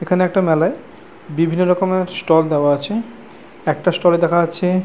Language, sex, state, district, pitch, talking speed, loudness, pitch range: Bengali, male, West Bengal, Purulia, 180 Hz, 160 wpm, -17 LUFS, 165-185 Hz